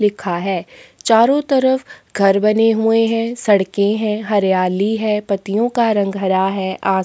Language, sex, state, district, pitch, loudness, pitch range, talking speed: Hindi, female, Chhattisgarh, Sukma, 210 Hz, -16 LUFS, 195-225 Hz, 155 wpm